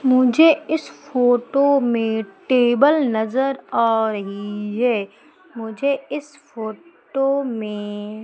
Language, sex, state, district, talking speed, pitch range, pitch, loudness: Hindi, female, Madhya Pradesh, Umaria, 100 wpm, 220-275 Hz, 245 Hz, -20 LUFS